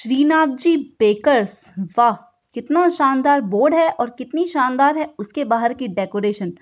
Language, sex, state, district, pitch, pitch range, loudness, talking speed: Hindi, female, Uttar Pradesh, Gorakhpur, 255 Hz, 220-295 Hz, -18 LUFS, 165 wpm